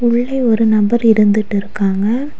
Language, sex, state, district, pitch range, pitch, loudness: Tamil, female, Tamil Nadu, Kanyakumari, 205-240 Hz, 220 Hz, -14 LUFS